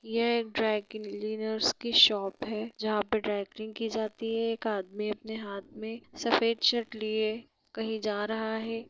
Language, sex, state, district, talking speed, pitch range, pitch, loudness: Hindi, female, Bihar, Sitamarhi, 175 wpm, 215-225 Hz, 220 Hz, -30 LUFS